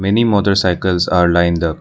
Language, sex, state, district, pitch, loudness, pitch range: English, male, Arunachal Pradesh, Lower Dibang Valley, 90 Hz, -14 LUFS, 85-100 Hz